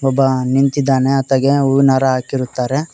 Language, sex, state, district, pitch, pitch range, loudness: Kannada, male, Karnataka, Koppal, 135 Hz, 130-135 Hz, -15 LUFS